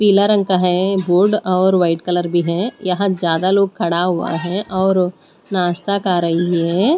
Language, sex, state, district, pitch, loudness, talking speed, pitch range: Hindi, female, Punjab, Pathankot, 185 Hz, -17 LUFS, 190 wpm, 175-195 Hz